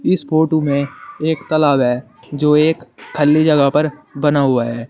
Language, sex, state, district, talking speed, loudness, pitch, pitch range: Hindi, male, Uttar Pradesh, Shamli, 170 wpm, -16 LUFS, 150 Hz, 140-155 Hz